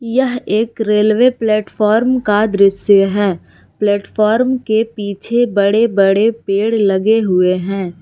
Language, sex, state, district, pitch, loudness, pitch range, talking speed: Hindi, female, Jharkhand, Palamu, 215 Hz, -14 LUFS, 200-225 Hz, 120 wpm